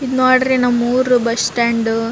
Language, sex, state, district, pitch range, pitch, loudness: Kannada, female, Karnataka, Raichur, 230-255 Hz, 245 Hz, -15 LUFS